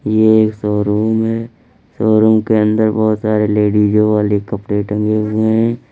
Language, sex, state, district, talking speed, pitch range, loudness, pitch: Hindi, male, Uttar Pradesh, Lalitpur, 150 wpm, 105-110 Hz, -14 LUFS, 110 Hz